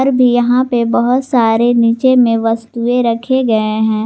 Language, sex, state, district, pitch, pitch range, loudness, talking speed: Hindi, female, Jharkhand, Garhwa, 240 Hz, 230-250 Hz, -13 LUFS, 165 wpm